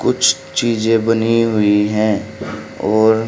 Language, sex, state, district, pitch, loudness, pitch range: Hindi, male, Haryana, Rohtak, 110 Hz, -15 LUFS, 105-115 Hz